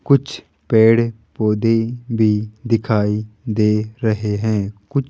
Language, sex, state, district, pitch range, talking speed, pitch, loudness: Hindi, male, Rajasthan, Jaipur, 105-115 Hz, 105 wpm, 110 Hz, -18 LUFS